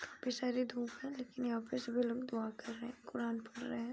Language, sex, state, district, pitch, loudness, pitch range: Hindi, female, Uttar Pradesh, Hamirpur, 240 Hz, -41 LUFS, 230-250 Hz